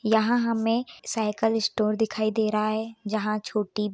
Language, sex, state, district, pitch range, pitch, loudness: Hindi, female, Bihar, Muzaffarpur, 215-225 Hz, 220 Hz, -26 LUFS